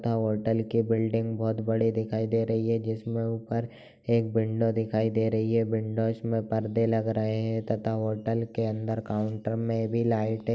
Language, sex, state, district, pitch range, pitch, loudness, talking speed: Hindi, male, Bihar, Darbhanga, 110-115 Hz, 110 Hz, -28 LUFS, 180 wpm